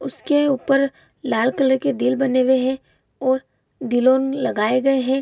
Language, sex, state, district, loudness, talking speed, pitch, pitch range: Hindi, female, Bihar, Bhagalpur, -19 LUFS, 160 wpm, 265 Hz, 255-270 Hz